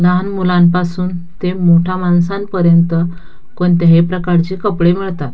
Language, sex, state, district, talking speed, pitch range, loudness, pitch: Marathi, female, Maharashtra, Dhule, 100 wpm, 170-180 Hz, -13 LUFS, 175 Hz